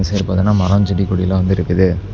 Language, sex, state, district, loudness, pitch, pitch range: Tamil, male, Tamil Nadu, Namakkal, -15 LUFS, 95 Hz, 95-100 Hz